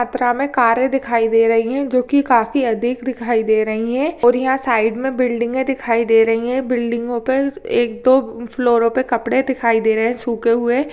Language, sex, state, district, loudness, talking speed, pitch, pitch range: Hindi, female, Rajasthan, Churu, -17 LUFS, 205 wpm, 240 Hz, 230-260 Hz